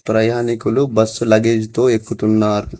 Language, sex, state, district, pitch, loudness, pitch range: Telugu, male, Telangana, Mahabubabad, 110 Hz, -16 LUFS, 110-115 Hz